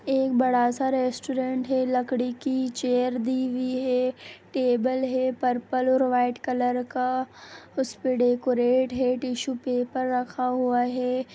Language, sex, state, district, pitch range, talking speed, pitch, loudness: Hindi, female, Bihar, Sitamarhi, 250-260 Hz, 145 wpm, 255 Hz, -25 LUFS